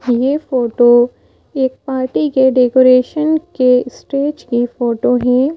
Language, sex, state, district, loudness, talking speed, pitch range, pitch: Hindi, female, Madhya Pradesh, Bhopal, -14 LUFS, 120 wpm, 245-275 Hz, 255 Hz